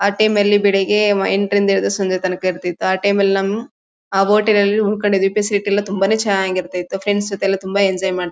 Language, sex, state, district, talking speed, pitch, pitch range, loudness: Kannada, female, Karnataka, Mysore, 210 wpm, 200 Hz, 190-205 Hz, -17 LUFS